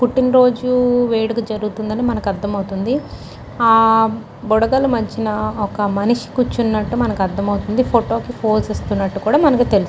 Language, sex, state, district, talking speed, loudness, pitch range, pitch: Telugu, female, Andhra Pradesh, Chittoor, 115 wpm, -17 LUFS, 210-245 Hz, 225 Hz